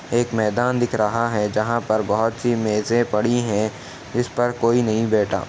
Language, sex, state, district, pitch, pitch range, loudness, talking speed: Hindi, male, Uttar Pradesh, Etah, 115 Hz, 105-120 Hz, -21 LUFS, 185 wpm